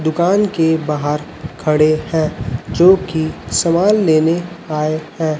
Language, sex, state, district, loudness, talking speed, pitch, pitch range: Hindi, male, Chhattisgarh, Raipur, -16 LUFS, 120 wpm, 160 Hz, 155-170 Hz